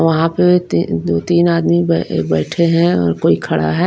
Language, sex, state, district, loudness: Hindi, female, Bihar, Patna, -14 LUFS